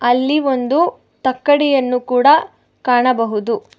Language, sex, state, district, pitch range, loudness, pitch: Kannada, female, Karnataka, Bangalore, 245-290 Hz, -16 LUFS, 255 Hz